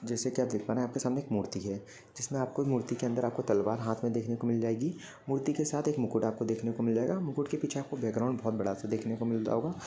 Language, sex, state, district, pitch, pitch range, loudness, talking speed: Hindi, male, Maharashtra, Sindhudurg, 120 Hz, 115-135 Hz, -32 LUFS, 275 wpm